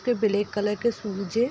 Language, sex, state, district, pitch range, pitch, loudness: Hindi, female, Bihar, Darbhanga, 205-235 Hz, 215 Hz, -26 LUFS